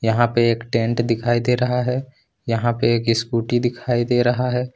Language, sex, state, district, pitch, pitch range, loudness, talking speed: Hindi, male, Jharkhand, Ranchi, 120 Hz, 115-125 Hz, -20 LUFS, 200 wpm